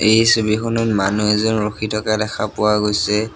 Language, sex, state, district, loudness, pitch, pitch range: Assamese, male, Assam, Sonitpur, -17 LUFS, 110 Hz, 105-110 Hz